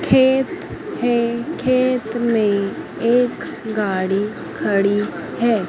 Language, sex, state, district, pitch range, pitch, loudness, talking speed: Hindi, female, Madhya Pradesh, Dhar, 205-250 Hz, 235 Hz, -19 LUFS, 85 wpm